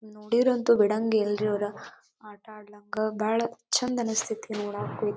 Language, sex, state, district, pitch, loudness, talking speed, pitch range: Kannada, female, Karnataka, Dharwad, 215 Hz, -27 LUFS, 115 wpm, 210-230 Hz